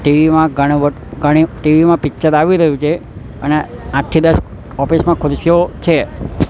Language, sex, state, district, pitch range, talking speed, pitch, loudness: Gujarati, male, Gujarat, Gandhinagar, 145-165 Hz, 165 wpm, 155 Hz, -13 LUFS